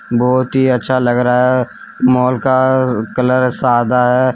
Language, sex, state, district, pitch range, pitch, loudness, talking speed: Hindi, male, Jharkhand, Deoghar, 125-130 Hz, 125 Hz, -14 LUFS, 150 wpm